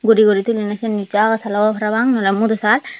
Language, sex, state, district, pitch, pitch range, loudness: Chakma, female, Tripura, Dhalai, 215 Hz, 210-225 Hz, -16 LUFS